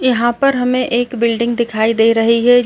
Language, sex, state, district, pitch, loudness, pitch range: Hindi, male, Maharashtra, Nagpur, 240 Hz, -14 LUFS, 230-250 Hz